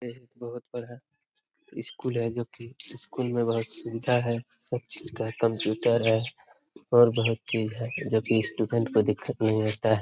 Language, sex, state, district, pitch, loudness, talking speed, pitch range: Hindi, male, Bihar, Jamui, 115 Hz, -27 LUFS, 175 wpm, 110-120 Hz